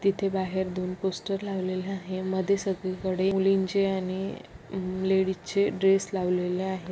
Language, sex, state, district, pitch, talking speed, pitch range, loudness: Marathi, female, Maharashtra, Aurangabad, 190 Hz, 120 wpm, 185-195 Hz, -28 LUFS